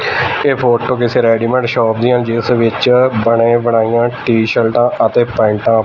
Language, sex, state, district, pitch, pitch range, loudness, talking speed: Punjabi, male, Punjab, Fazilka, 120 Hz, 115-120 Hz, -13 LUFS, 155 wpm